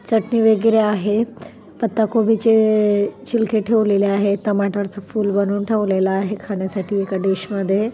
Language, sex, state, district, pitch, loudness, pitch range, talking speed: Marathi, female, Maharashtra, Solapur, 205 Hz, -18 LUFS, 200-220 Hz, 130 wpm